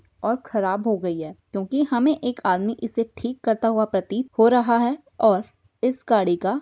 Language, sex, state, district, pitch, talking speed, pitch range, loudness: Hindi, female, Bihar, Jahanabad, 225 Hz, 200 wpm, 200-245 Hz, -22 LUFS